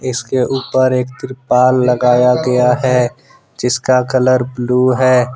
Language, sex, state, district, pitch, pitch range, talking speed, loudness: Hindi, male, Jharkhand, Ranchi, 125 Hz, 125-130 Hz, 125 wpm, -14 LUFS